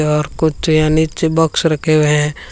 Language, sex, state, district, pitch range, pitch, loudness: Hindi, female, Rajasthan, Bikaner, 150-160 Hz, 155 Hz, -15 LUFS